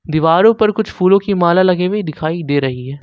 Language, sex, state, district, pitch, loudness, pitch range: Hindi, male, Jharkhand, Ranchi, 175 Hz, -14 LUFS, 155-195 Hz